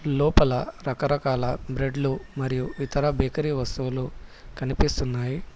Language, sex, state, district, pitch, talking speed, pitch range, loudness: Telugu, male, Telangana, Hyderabad, 135 Hz, 85 wpm, 130-145 Hz, -26 LUFS